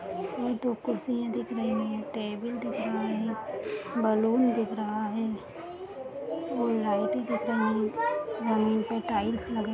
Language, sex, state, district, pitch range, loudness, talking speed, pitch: Hindi, female, Bihar, Gaya, 215-235 Hz, -30 LUFS, 125 wpm, 220 Hz